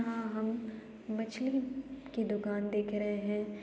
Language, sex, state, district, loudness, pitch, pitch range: Hindi, female, Uttar Pradesh, Jalaun, -36 LUFS, 220 Hz, 210-230 Hz